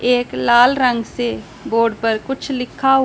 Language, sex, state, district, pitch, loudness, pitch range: Hindi, female, Punjab, Pathankot, 245 Hz, -17 LUFS, 230-265 Hz